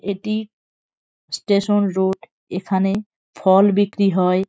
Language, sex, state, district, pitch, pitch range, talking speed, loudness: Bengali, female, West Bengal, Jhargram, 200 Hz, 190-205 Hz, 95 wpm, -19 LUFS